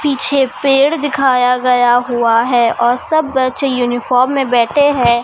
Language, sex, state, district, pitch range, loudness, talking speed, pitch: Hindi, male, Maharashtra, Mumbai Suburban, 240-275 Hz, -13 LUFS, 150 wpm, 250 Hz